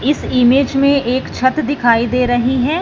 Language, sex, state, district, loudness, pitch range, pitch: Hindi, male, Punjab, Fazilka, -14 LUFS, 245-280 Hz, 260 Hz